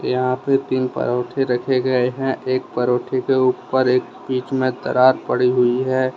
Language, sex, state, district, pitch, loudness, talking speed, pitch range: Hindi, male, Jharkhand, Deoghar, 130 Hz, -19 LUFS, 175 wpm, 125-130 Hz